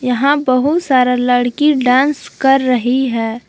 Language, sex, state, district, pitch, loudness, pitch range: Hindi, female, Jharkhand, Palamu, 255 Hz, -14 LUFS, 245-275 Hz